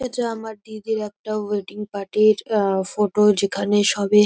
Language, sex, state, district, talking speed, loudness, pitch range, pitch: Bengali, female, West Bengal, North 24 Parganas, 170 wpm, -21 LUFS, 205-215 Hz, 210 Hz